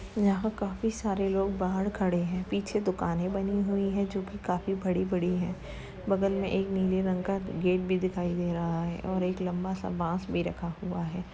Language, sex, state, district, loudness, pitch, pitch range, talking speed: Hindi, female, Uttar Pradesh, Jalaun, -30 LUFS, 190 Hz, 180-195 Hz, 205 wpm